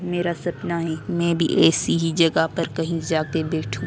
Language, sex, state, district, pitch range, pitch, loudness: Hindi, female, Delhi, New Delhi, 160-170 Hz, 165 Hz, -22 LUFS